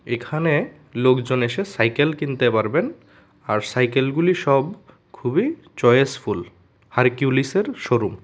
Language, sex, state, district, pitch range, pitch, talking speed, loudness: Bengali, male, Tripura, West Tripura, 120-155 Hz, 135 Hz, 115 wpm, -21 LUFS